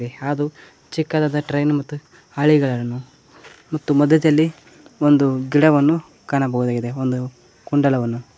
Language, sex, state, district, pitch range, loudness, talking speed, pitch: Kannada, male, Karnataka, Koppal, 130-150 Hz, -19 LUFS, 80 wpm, 145 Hz